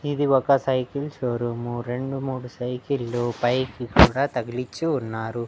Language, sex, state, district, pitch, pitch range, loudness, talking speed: Telugu, male, Andhra Pradesh, Annamaya, 125 Hz, 120-135 Hz, -24 LUFS, 130 wpm